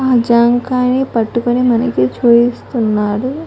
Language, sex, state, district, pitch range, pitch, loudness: Telugu, female, Telangana, Karimnagar, 235-250 Hz, 240 Hz, -13 LUFS